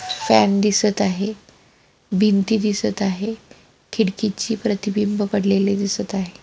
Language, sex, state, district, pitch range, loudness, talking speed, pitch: Marathi, female, Maharashtra, Pune, 200-215 Hz, -20 LUFS, 100 wpm, 205 Hz